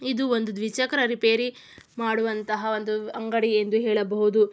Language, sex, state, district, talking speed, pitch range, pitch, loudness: Kannada, female, Karnataka, Mysore, 120 wpm, 215-235 Hz, 220 Hz, -25 LUFS